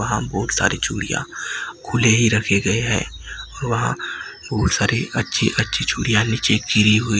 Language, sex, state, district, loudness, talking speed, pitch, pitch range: Hindi, male, Maharashtra, Gondia, -19 LUFS, 140 wpm, 110 Hz, 105-115 Hz